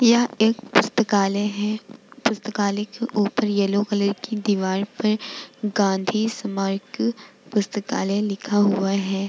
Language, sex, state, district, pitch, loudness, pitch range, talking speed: Hindi, female, Bihar, Vaishali, 210 Hz, -23 LUFS, 200-225 Hz, 115 wpm